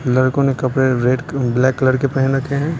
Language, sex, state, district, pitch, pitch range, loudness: Hindi, male, Bihar, Patna, 130 Hz, 130-135 Hz, -17 LUFS